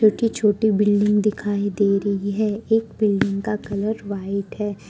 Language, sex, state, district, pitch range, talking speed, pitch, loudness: Hindi, female, Jharkhand, Ranchi, 200-215 Hz, 160 wpm, 205 Hz, -21 LUFS